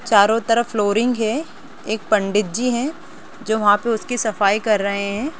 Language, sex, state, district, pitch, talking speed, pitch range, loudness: Hindi, female, Bihar, Sitamarhi, 220 Hz, 180 wpm, 205-240 Hz, -19 LUFS